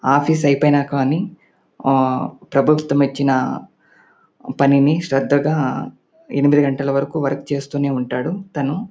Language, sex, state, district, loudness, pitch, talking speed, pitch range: Telugu, male, Andhra Pradesh, Anantapur, -18 LUFS, 140 Hz, 100 wpm, 135-150 Hz